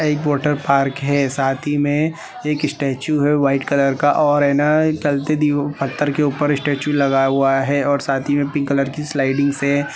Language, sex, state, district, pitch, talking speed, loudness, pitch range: Hindi, male, Uttar Pradesh, Gorakhpur, 145 Hz, 195 wpm, -18 LUFS, 140-150 Hz